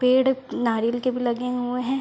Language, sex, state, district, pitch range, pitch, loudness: Hindi, female, Bihar, Begusarai, 240-255 Hz, 250 Hz, -24 LUFS